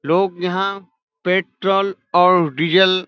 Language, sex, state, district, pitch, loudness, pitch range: Hindi, male, Uttar Pradesh, Budaun, 185 Hz, -17 LUFS, 175-190 Hz